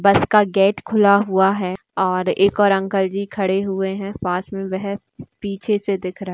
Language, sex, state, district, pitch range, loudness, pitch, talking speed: Hindi, female, Rajasthan, Nagaur, 190-200 Hz, -19 LUFS, 195 Hz, 210 wpm